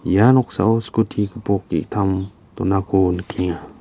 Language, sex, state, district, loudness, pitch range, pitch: Garo, male, Meghalaya, West Garo Hills, -19 LUFS, 95-110 Hz, 100 Hz